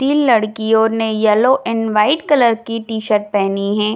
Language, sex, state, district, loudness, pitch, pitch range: Hindi, female, Bihar, Jamui, -15 LUFS, 225 Hz, 215-235 Hz